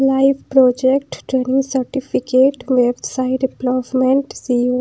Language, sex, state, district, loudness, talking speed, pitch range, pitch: Hindi, female, Punjab, Pathankot, -17 LUFS, 125 wpm, 255-270 Hz, 260 Hz